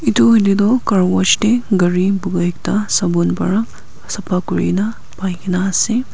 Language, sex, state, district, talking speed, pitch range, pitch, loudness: Nagamese, female, Nagaland, Kohima, 145 wpm, 180-210 Hz, 190 Hz, -16 LUFS